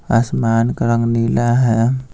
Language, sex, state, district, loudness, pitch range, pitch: Hindi, male, Bihar, Patna, -16 LUFS, 115-120 Hz, 115 Hz